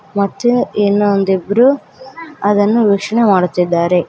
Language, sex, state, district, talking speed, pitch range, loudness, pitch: Kannada, female, Karnataka, Koppal, 75 wpm, 195-235 Hz, -14 LUFS, 205 Hz